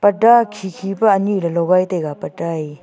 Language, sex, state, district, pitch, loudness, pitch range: Wancho, female, Arunachal Pradesh, Longding, 190 Hz, -17 LUFS, 170-205 Hz